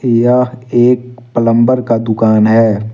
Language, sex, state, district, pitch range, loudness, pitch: Hindi, male, Jharkhand, Deoghar, 115-125 Hz, -12 LUFS, 120 Hz